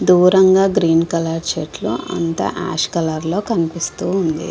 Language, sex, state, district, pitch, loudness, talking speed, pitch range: Telugu, female, Andhra Pradesh, Visakhapatnam, 170 Hz, -17 LUFS, 120 wpm, 165-185 Hz